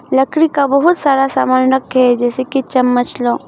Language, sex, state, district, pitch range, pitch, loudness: Hindi, female, Arunachal Pradesh, Longding, 250-275 Hz, 260 Hz, -13 LUFS